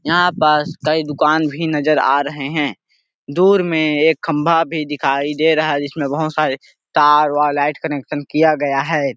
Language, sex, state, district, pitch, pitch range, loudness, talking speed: Hindi, male, Chhattisgarh, Sarguja, 150 Hz, 145-160 Hz, -16 LUFS, 185 wpm